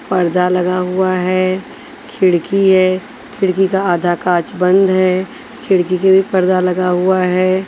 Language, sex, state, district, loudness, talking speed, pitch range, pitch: Hindi, female, Maharashtra, Washim, -14 LUFS, 150 wpm, 180-190 Hz, 185 Hz